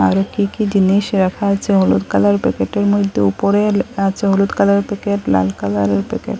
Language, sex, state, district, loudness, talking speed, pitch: Bengali, female, Assam, Hailakandi, -16 LUFS, 180 wpm, 195 Hz